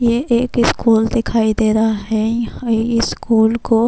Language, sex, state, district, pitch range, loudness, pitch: Urdu, female, Bihar, Kishanganj, 220-235 Hz, -16 LUFS, 230 Hz